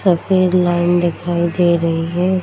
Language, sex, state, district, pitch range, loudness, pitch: Hindi, female, Bihar, Darbhanga, 170-180 Hz, -16 LUFS, 175 Hz